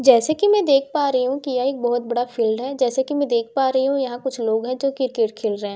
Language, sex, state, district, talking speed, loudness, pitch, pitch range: Hindi, female, Bihar, Katihar, 310 wpm, -20 LUFS, 255 Hz, 235-275 Hz